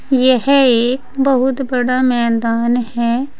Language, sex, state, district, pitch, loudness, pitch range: Hindi, female, Uttar Pradesh, Saharanpur, 250 Hz, -15 LUFS, 240-265 Hz